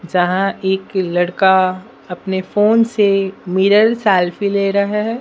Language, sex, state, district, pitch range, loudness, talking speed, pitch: Hindi, female, Bihar, Patna, 185-205 Hz, -15 LUFS, 125 wpm, 195 Hz